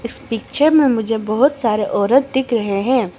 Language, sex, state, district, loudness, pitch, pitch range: Hindi, female, Arunachal Pradesh, Longding, -16 LUFS, 235 Hz, 215-265 Hz